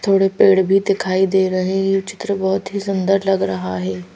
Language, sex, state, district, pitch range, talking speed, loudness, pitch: Hindi, female, Madhya Pradesh, Bhopal, 185-195 Hz, 215 wpm, -17 LUFS, 190 Hz